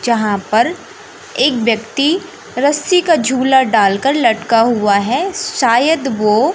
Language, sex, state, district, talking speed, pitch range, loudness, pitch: Hindi, male, Madhya Pradesh, Katni, 120 wpm, 225-340 Hz, -14 LUFS, 260 Hz